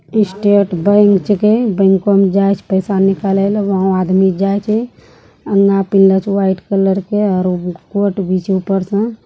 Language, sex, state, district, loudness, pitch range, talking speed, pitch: Angika, female, Bihar, Bhagalpur, -13 LUFS, 190-205 Hz, 160 wpm, 195 Hz